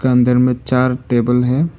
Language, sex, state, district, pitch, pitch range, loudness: Hindi, male, Arunachal Pradesh, Papum Pare, 125 Hz, 125-130 Hz, -15 LUFS